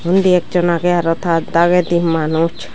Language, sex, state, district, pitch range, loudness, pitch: Chakma, female, Tripura, Dhalai, 165-175 Hz, -15 LUFS, 170 Hz